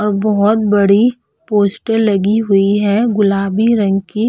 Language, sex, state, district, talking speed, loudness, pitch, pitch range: Hindi, female, Uttar Pradesh, Budaun, 140 wpm, -13 LUFS, 210 Hz, 200-225 Hz